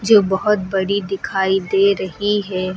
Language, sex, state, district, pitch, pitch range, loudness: Hindi, female, Uttar Pradesh, Lucknow, 195 Hz, 190-200 Hz, -18 LUFS